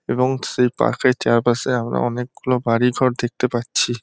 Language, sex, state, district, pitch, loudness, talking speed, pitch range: Bengali, male, West Bengal, North 24 Parganas, 125 Hz, -19 LUFS, 150 wpm, 120-125 Hz